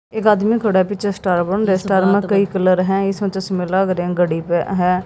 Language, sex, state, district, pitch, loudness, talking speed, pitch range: Hindi, female, Haryana, Jhajjar, 190 Hz, -17 LUFS, 250 wpm, 180-200 Hz